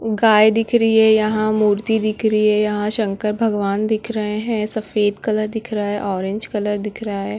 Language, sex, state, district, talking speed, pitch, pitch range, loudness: Hindi, female, Chhattisgarh, Korba, 205 wpm, 215 Hz, 210-220 Hz, -18 LUFS